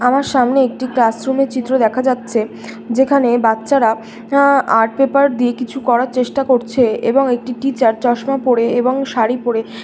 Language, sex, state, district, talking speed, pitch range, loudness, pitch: Bengali, female, West Bengal, Jhargram, 165 wpm, 235-265 Hz, -15 LUFS, 250 Hz